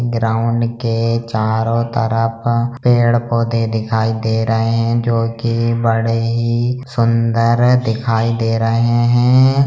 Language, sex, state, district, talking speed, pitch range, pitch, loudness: Hindi, male, Bihar, Jamui, 110 wpm, 115-120 Hz, 115 Hz, -16 LUFS